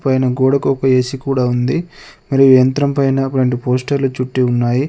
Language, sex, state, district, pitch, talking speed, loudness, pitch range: Telugu, male, Telangana, Adilabad, 130 Hz, 170 wpm, -15 LUFS, 125-135 Hz